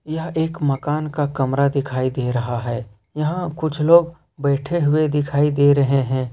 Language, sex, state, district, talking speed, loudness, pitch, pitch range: Hindi, male, Jharkhand, Ranchi, 170 wpm, -20 LUFS, 145 Hz, 130-155 Hz